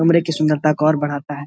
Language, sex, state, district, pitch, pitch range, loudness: Hindi, male, Bihar, Saharsa, 155 Hz, 145-160 Hz, -18 LUFS